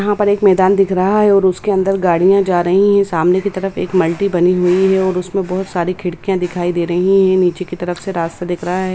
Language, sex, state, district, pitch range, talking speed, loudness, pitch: Hindi, female, Bihar, Samastipur, 180-195 Hz, 260 wpm, -15 LUFS, 185 Hz